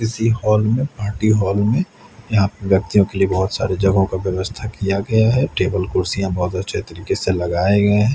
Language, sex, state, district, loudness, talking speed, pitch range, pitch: Hindi, male, Haryana, Rohtak, -18 LUFS, 205 wpm, 95-110 Hz, 100 Hz